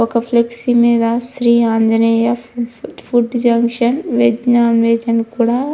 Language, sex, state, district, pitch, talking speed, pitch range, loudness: Telugu, female, Andhra Pradesh, Krishna, 235 Hz, 165 wpm, 230-240 Hz, -14 LUFS